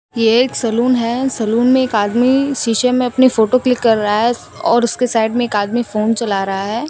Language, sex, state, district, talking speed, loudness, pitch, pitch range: Hindi, female, Rajasthan, Bikaner, 225 wpm, -15 LUFS, 235 Hz, 220-250 Hz